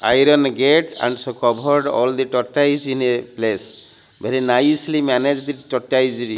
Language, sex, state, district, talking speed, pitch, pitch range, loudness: English, male, Odisha, Malkangiri, 140 wpm, 130 Hz, 125-145 Hz, -18 LUFS